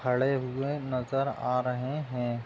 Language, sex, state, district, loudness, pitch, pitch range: Hindi, male, Uttar Pradesh, Budaun, -30 LUFS, 130 Hz, 125-135 Hz